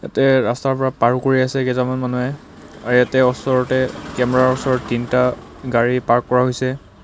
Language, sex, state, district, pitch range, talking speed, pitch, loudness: Assamese, male, Assam, Kamrup Metropolitan, 125-130 Hz, 160 wpm, 125 Hz, -18 LUFS